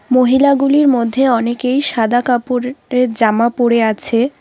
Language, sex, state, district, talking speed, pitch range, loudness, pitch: Bengali, female, West Bengal, Alipurduar, 120 wpm, 235-265 Hz, -14 LUFS, 250 Hz